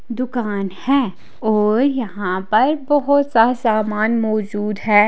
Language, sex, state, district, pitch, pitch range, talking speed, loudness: Hindi, female, Haryana, Charkhi Dadri, 220 Hz, 210-255 Hz, 120 wpm, -18 LUFS